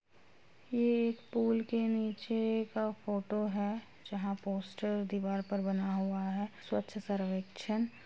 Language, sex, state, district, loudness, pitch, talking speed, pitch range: Hindi, female, Bihar, Purnia, -35 LUFS, 210 Hz, 135 wpm, 195-225 Hz